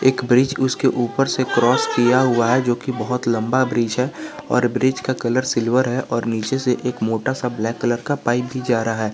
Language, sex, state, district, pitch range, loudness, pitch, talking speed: Hindi, male, Jharkhand, Garhwa, 120-130 Hz, -19 LUFS, 125 Hz, 230 wpm